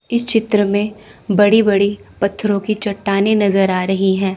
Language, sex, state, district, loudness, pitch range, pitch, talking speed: Hindi, female, Chandigarh, Chandigarh, -16 LUFS, 195-215 Hz, 205 Hz, 165 wpm